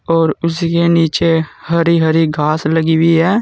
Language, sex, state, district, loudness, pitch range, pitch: Hindi, male, Uttar Pradesh, Saharanpur, -14 LUFS, 160-170 Hz, 165 Hz